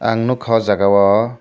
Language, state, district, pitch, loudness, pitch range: Kokborok, Tripura, Dhalai, 115 Hz, -15 LUFS, 100-115 Hz